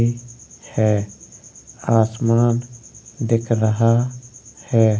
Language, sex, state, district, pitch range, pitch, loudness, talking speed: Hindi, male, Uttar Pradesh, Jalaun, 110-120 Hz, 115 Hz, -19 LUFS, 60 wpm